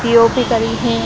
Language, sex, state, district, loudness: Hindi, female, Bihar, Saharsa, -14 LUFS